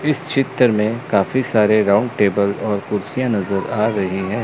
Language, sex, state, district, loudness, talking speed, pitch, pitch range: Hindi, male, Chandigarh, Chandigarh, -18 LUFS, 175 wpm, 105 Hz, 100-125 Hz